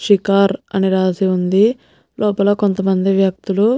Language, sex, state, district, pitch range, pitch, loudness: Telugu, female, Telangana, Nalgonda, 190-205 Hz, 195 Hz, -16 LUFS